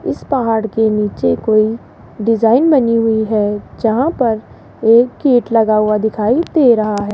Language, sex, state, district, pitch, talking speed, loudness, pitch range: Hindi, female, Rajasthan, Jaipur, 225 Hz, 160 wpm, -14 LUFS, 215-235 Hz